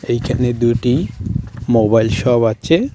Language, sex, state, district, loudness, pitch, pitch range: Bengali, male, West Bengal, Alipurduar, -16 LUFS, 120 Hz, 115-125 Hz